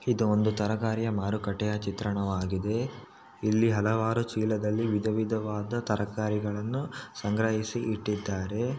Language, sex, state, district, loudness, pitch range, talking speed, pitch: Kannada, male, Karnataka, Shimoga, -29 LUFS, 105-110 Hz, 90 wpm, 110 Hz